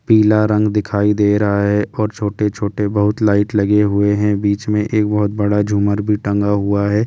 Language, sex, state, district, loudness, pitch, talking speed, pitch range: Hindi, male, Delhi, New Delhi, -16 LUFS, 105 Hz, 210 wpm, 100-105 Hz